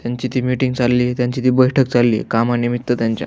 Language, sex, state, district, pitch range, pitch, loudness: Marathi, male, Maharashtra, Aurangabad, 120-125 Hz, 125 Hz, -17 LUFS